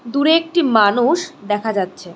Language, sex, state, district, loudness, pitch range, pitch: Bengali, female, West Bengal, Cooch Behar, -16 LUFS, 205-320 Hz, 235 Hz